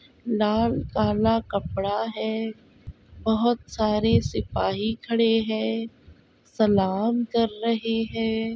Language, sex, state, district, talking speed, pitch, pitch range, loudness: Hindi, female, Bihar, Saharsa, 85 wpm, 225 Hz, 210-225 Hz, -24 LUFS